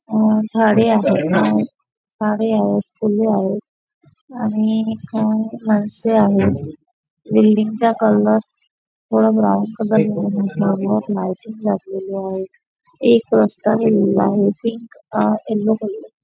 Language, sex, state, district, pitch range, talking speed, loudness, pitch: Marathi, female, Maharashtra, Nagpur, 195-220 Hz, 105 wpm, -17 LUFS, 215 Hz